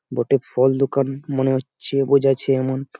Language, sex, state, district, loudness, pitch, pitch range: Bengali, male, West Bengal, Malda, -20 LUFS, 135 Hz, 130-135 Hz